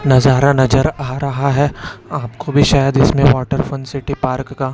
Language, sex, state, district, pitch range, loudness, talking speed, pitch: Hindi, male, Chhattisgarh, Raipur, 130-140 Hz, -15 LUFS, 175 wpm, 140 Hz